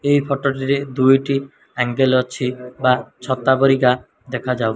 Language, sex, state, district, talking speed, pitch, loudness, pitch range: Odia, male, Odisha, Malkangiri, 140 wpm, 130 Hz, -18 LUFS, 125-140 Hz